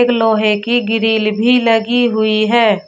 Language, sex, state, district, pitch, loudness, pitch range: Hindi, female, Uttar Pradesh, Shamli, 225 Hz, -13 LUFS, 215-235 Hz